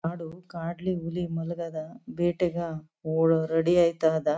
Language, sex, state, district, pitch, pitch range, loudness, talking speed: Kannada, female, Karnataka, Chamarajanagar, 165 Hz, 160-175 Hz, -27 LUFS, 95 wpm